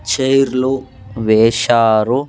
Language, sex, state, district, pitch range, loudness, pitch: Telugu, male, Andhra Pradesh, Sri Satya Sai, 110-130 Hz, -14 LUFS, 120 Hz